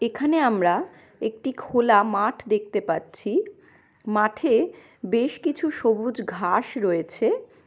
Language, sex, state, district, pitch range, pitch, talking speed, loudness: Bengali, female, West Bengal, Malda, 215-315 Hz, 235 Hz, 100 wpm, -24 LUFS